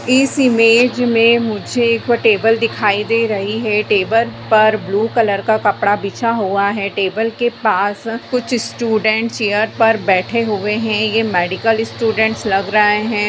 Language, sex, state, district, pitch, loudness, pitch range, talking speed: Hindi, female, Bihar, Bhagalpur, 220 Hz, -15 LUFS, 205-230 Hz, 160 wpm